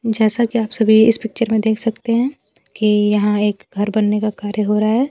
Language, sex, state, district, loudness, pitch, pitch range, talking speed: Hindi, female, Bihar, Kaimur, -16 LUFS, 220 Hz, 210-225 Hz, 235 wpm